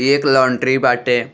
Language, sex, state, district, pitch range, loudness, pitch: Bhojpuri, male, Uttar Pradesh, Deoria, 125-135 Hz, -15 LUFS, 130 Hz